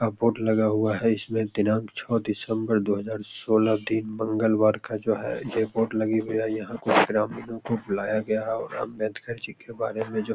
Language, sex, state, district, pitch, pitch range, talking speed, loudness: Hindi, male, Bihar, Begusarai, 110 Hz, 110-115 Hz, 220 wpm, -26 LUFS